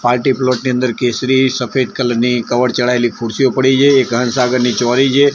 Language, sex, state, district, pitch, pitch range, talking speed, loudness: Gujarati, male, Gujarat, Gandhinagar, 125 Hz, 120-130 Hz, 190 wpm, -14 LUFS